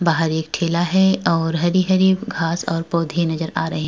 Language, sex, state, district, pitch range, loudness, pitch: Hindi, female, Uttar Pradesh, Jalaun, 160-185 Hz, -19 LUFS, 170 Hz